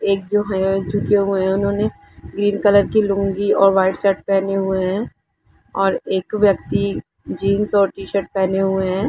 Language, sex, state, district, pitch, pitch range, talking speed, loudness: Hindi, female, Jharkhand, Jamtara, 195 Hz, 190-205 Hz, 180 wpm, -18 LUFS